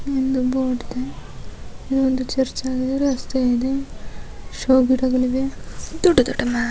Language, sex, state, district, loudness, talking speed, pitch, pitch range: Kannada, female, Karnataka, Dakshina Kannada, -20 LUFS, 90 wpm, 260 Hz, 255-270 Hz